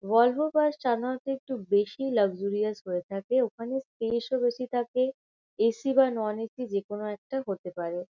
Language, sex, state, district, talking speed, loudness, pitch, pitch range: Bengali, female, West Bengal, Kolkata, 155 wpm, -29 LUFS, 235 Hz, 205-255 Hz